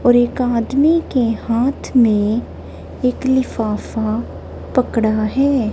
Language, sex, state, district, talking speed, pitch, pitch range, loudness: Hindi, male, Punjab, Kapurthala, 105 wpm, 240 Hz, 225-260 Hz, -17 LUFS